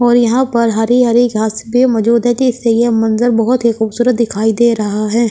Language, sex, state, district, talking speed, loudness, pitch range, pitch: Hindi, female, Delhi, New Delhi, 215 wpm, -13 LUFS, 225-240 Hz, 235 Hz